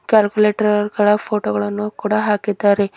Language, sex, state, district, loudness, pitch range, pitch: Kannada, female, Karnataka, Bidar, -17 LUFS, 200-210 Hz, 210 Hz